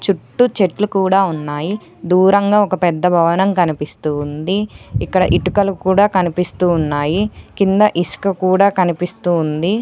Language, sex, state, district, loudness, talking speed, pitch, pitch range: Telugu, female, Telangana, Mahabubabad, -16 LUFS, 120 wpm, 185 Hz, 170-195 Hz